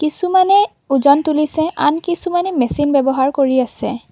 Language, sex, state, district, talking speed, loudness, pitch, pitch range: Assamese, female, Assam, Kamrup Metropolitan, 130 wpm, -15 LUFS, 300 Hz, 275-350 Hz